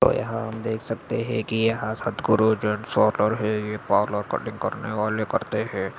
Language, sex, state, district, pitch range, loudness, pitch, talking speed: Hindi, male, Maharashtra, Aurangabad, 105-115 Hz, -25 LUFS, 110 Hz, 190 wpm